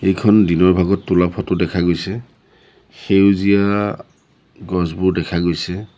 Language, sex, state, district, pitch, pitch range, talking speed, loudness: Assamese, male, Assam, Sonitpur, 95 Hz, 90-100 Hz, 110 wpm, -16 LUFS